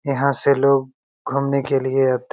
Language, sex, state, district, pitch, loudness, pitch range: Hindi, male, Bihar, Begusarai, 140 Hz, -19 LUFS, 130-140 Hz